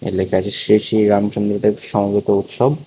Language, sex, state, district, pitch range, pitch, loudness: Bengali, male, Tripura, West Tripura, 100-105 Hz, 105 Hz, -17 LUFS